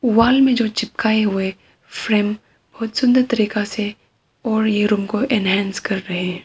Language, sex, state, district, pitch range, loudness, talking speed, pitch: Hindi, female, Arunachal Pradesh, Papum Pare, 200-230 Hz, -19 LUFS, 165 wpm, 215 Hz